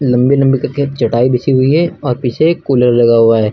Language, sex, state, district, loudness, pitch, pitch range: Hindi, male, Uttar Pradesh, Lucknow, -12 LUFS, 130 Hz, 120-140 Hz